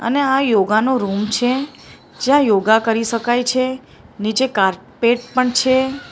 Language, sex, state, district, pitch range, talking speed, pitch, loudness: Gujarati, female, Maharashtra, Mumbai Suburban, 220-260 Hz, 145 wpm, 245 Hz, -17 LUFS